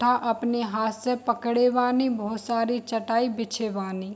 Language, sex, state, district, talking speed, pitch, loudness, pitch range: Hindi, female, Bihar, Darbhanga, 160 wpm, 230 Hz, -25 LUFS, 220-245 Hz